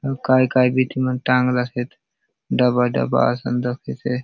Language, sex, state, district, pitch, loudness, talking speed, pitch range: Halbi, male, Chhattisgarh, Bastar, 125 Hz, -19 LUFS, 155 wpm, 125-130 Hz